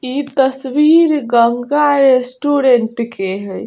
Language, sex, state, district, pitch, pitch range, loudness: Bajjika, female, Bihar, Vaishali, 265 Hz, 240-290 Hz, -14 LUFS